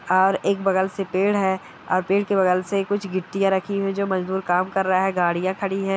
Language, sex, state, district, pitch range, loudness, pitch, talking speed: Hindi, female, Bihar, Gaya, 185-195 Hz, -22 LUFS, 190 Hz, 240 wpm